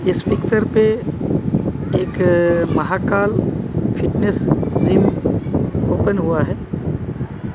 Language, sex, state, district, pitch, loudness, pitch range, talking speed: Hindi, male, Odisha, Malkangiri, 195 Hz, -18 LUFS, 175-215 Hz, 80 wpm